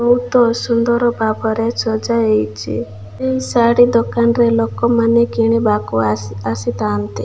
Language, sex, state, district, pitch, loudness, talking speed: Odia, female, Odisha, Malkangiri, 225 Hz, -16 LUFS, 100 wpm